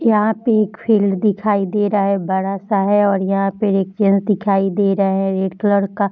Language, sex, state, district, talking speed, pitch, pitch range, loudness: Hindi, female, Bihar, Darbhanga, 235 wpm, 200 Hz, 195-210 Hz, -17 LUFS